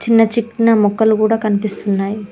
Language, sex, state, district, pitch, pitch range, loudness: Telugu, female, Telangana, Mahabubabad, 220 Hz, 205-225 Hz, -15 LUFS